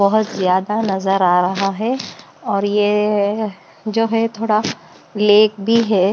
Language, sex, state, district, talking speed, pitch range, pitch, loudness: Hindi, female, Bihar, West Champaran, 135 wpm, 195-220 Hz, 210 Hz, -17 LUFS